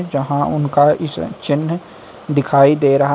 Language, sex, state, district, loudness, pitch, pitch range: Hindi, male, Uttar Pradesh, Lucknow, -16 LUFS, 145 Hz, 140-150 Hz